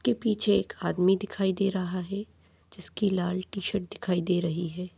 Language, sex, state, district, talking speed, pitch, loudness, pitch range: Hindi, female, Maharashtra, Nagpur, 180 wpm, 190 Hz, -28 LUFS, 180-205 Hz